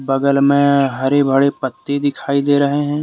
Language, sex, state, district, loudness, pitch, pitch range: Hindi, male, Jharkhand, Deoghar, -15 LUFS, 140 Hz, 135-140 Hz